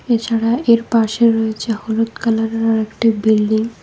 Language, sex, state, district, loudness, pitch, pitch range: Bengali, female, Tripura, West Tripura, -16 LUFS, 225 Hz, 220-230 Hz